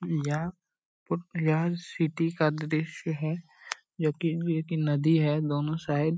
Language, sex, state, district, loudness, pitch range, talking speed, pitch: Hindi, male, Bihar, Purnia, -29 LUFS, 155-165 Hz, 125 wpm, 160 Hz